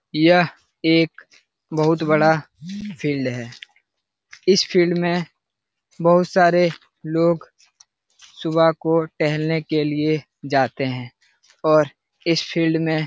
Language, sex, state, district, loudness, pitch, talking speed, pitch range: Hindi, male, Bihar, Lakhisarai, -20 LUFS, 160 Hz, 115 wpm, 155-170 Hz